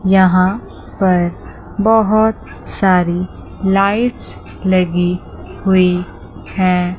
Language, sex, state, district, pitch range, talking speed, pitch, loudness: Hindi, female, Chandigarh, Chandigarh, 180-200 Hz, 70 wpm, 185 Hz, -15 LUFS